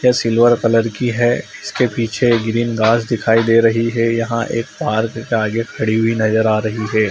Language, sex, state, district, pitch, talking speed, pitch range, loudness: Hindi, male, Uttar Pradesh, Jalaun, 115 Hz, 205 wpm, 110-115 Hz, -16 LUFS